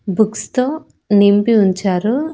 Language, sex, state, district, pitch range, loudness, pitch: Telugu, female, Andhra Pradesh, Annamaya, 200-255 Hz, -15 LUFS, 215 Hz